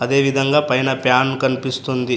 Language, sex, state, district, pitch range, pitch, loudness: Telugu, male, Telangana, Adilabad, 125-135 Hz, 130 Hz, -17 LUFS